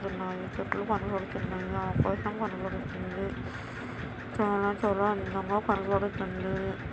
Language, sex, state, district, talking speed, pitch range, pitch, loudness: Telugu, female, Andhra Pradesh, Anantapur, 80 wpm, 120-205 Hz, 195 Hz, -32 LUFS